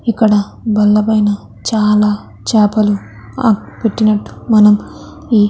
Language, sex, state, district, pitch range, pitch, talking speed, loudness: Telugu, female, Andhra Pradesh, Chittoor, 210-220 Hz, 215 Hz, 100 wpm, -13 LUFS